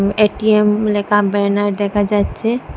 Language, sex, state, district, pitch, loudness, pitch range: Bengali, female, Assam, Hailakandi, 205 Hz, -15 LUFS, 205-210 Hz